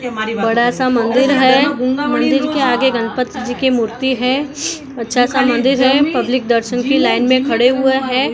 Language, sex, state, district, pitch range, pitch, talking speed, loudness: Hindi, female, Maharashtra, Mumbai Suburban, 245-265 Hz, 255 Hz, 175 wpm, -14 LUFS